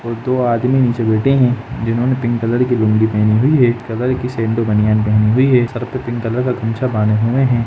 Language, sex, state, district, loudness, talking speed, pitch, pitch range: Hindi, male, Jharkhand, Jamtara, -15 LUFS, 220 wpm, 120 Hz, 115-125 Hz